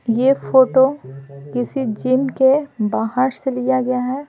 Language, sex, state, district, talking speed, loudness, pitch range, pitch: Hindi, female, Bihar, Patna, 140 wpm, -18 LUFS, 230-265 Hz, 255 Hz